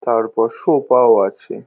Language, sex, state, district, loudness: Bengali, male, West Bengal, Jalpaiguri, -15 LUFS